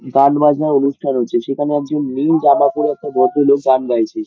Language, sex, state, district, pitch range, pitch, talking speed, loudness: Bengali, male, West Bengal, Dakshin Dinajpur, 130-145 Hz, 140 Hz, 180 wpm, -15 LUFS